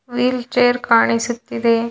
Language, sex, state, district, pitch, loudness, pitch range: Kannada, female, Karnataka, Chamarajanagar, 240 Hz, -17 LUFS, 230-245 Hz